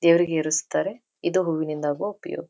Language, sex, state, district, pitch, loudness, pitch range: Kannada, female, Karnataka, Dharwad, 170 Hz, -25 LUFS, 155-195 Hz